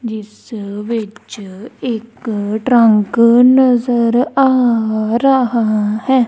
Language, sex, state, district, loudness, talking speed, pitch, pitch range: Punjabi, female, Punjab, Kapurthala, -14 LUFS, 75 wpm, 230 Hz, 215-245 Hz